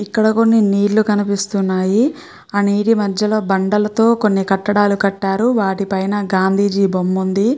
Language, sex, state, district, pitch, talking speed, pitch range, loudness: Telugu, female, Andhra Pradesh, Chittoor, 205 Hz, 125 wpm, 195-215 Hz, -16 LUFS